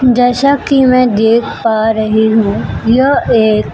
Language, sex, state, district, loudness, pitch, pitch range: Hindi, female, Chhattisgarh, Raipur, -11 LUFS, 230 Hz, 220-255 Hz